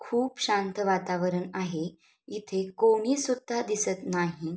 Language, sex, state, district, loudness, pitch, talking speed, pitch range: Marathi, female, Maharashtra, Sindhudurg, -28 LUFS, 195 Hz, 105 wpm, 180-225 Hz